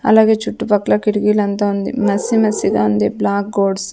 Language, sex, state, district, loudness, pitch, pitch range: Telugu, female, Andhra Pradesh, Sri Satya Sai, -16 LUFS, 205 Hz, 200-215 Hz